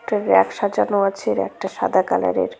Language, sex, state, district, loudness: Bengali, female, West Bengal, Cooch Behar, -20 LUFS